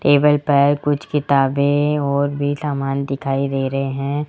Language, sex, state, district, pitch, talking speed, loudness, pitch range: Hindi, male, Rajasthan, Jaipur, 140 Hz, 155 wpm, -18 LUFS, 135-145 Hz